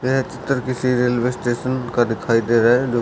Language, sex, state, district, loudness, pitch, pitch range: Hindi, male, Chhattisgarh, Raigarh, -19 LUFS, 125 Hz, 120-130 Hz